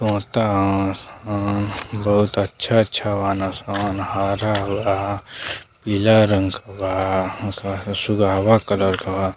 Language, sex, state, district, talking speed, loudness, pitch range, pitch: Bhojpuri, male, Uttar Pradesh, Deoria, 115 wpm, -20 LUFS, 95-105 Hz, 100 Hz